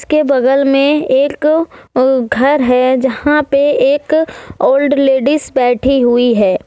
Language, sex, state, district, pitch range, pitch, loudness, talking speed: Hindi, female, Jharkhand, Deoghar, 260-295 Hz, 275 Hz, -12 LUFS, 135 wpm